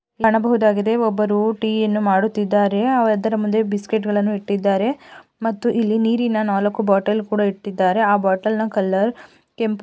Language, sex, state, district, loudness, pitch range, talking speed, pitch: Kannada, female, Karnataka, Gulbarga, -19 LUFS, 205-225 Hz, 120 wpm, 215 Hz